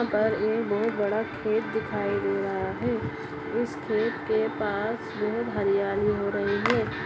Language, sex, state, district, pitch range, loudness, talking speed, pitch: Kumaoni, female, Uttarakhand, Uttarkashi, 200-220 Hz, -27 LUFS, 160 wpm, 210 Hz